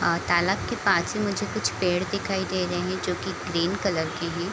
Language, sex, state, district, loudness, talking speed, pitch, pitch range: Hindi, female, Bihar, Kishanganj, -26 LUFS, 250 wpm, 180 Hz, 175-195 Hz